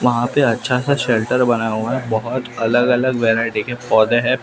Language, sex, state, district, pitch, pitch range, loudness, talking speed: Hindi, male, Maharashtra, Mumbai Suburban, 120 Hz, 115-125 Hz, -17 LUFS, 190 wpm